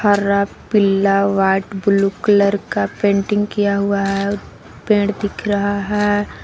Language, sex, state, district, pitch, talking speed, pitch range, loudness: Hindi, female, Jharkhand, Palamu, 200 Hz, 130 wpm, 195-205 Hz, -17 LUFS